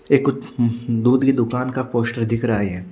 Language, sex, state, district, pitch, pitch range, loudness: Hindi, male, Chhattisgarh, Raipur, 120 Hz, 115-130 Hz, -20 LUFS